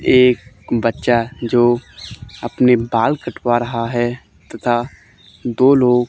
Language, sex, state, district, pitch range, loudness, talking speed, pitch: Hindi, male, Haryana, Charkhi Dadri, 115-125 Hz, -17 LUFS, 110 wpm, 120 Hz